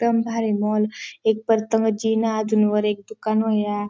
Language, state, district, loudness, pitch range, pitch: Bhili, Maharashtra, Dhule, -22 LUFS, 210-225 Hz, 220 Hz